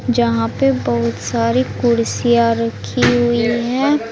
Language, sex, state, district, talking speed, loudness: Hindi, female, Uttar Pradesh, Saharanpur, 115 wpm, -16 LUFS